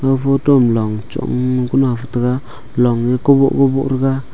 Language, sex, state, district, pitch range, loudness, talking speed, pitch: Wancho, male, Arunachal Pradesh, Longding, 120-135 Hz, -15 LUFS, 165 wpm, 130 Hz